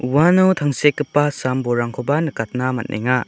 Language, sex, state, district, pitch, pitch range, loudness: Garo, male, Meghalaya, South Garo Hills, 130 Hz, 125-145 Hz, -18 LUFS